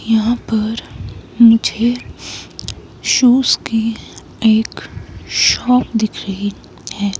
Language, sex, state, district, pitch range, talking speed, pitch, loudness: Hindi, female, Himachal Pradesh, Shimla, 220-235 Hz, 85 wpm, 225 Hz, -15 LUFS